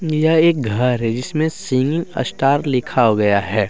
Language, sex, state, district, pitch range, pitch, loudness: Hindi, male, Jharkhand, Deoghar, 115-160 Hz, 130 Hz, -17 LUFS